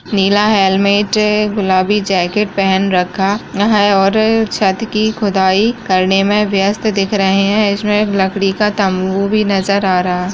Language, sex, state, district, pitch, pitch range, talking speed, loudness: Kumaoni, female, Uttarakhand, Uttarkashi, 200 Hz, 195-210 Hz, 150 wpm, -13 LUFS